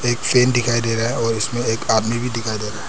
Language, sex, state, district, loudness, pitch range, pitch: Hindi, male, Arunachal Pradesh, Papum Pare, -19 LUFS, 115-120 Hz, 115 Hz